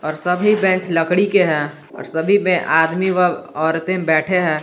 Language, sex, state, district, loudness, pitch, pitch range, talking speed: Hindi, male, Jharkhand, Garhwa, -17 LUFS, 180 Hz, 160-185 Hz, 180 wpm